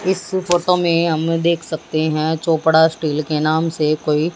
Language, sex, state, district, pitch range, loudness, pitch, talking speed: Hindi, female, Haryana, Jhajjar, 155-170 Hz, -17 LUFS, 160 Hz, 195 wpm